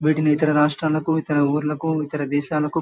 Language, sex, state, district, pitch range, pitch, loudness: Telugu, male, Karnataka, Bellary, 150-155 Hz, 150 Hz, -21 LUFS